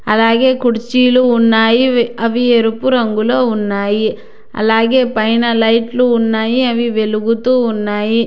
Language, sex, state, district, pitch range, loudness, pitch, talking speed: Telugu, female, Telangana, Hyderabad, 220-245 Hz, -13 LUFS, 230 Hz, 100 wpm